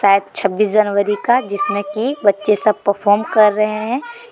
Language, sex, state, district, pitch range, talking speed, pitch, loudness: Hindi, female, Jharkhand, Deoghar, 200-220 Hz, 180 wpm, 210 Hz, -16 LUFS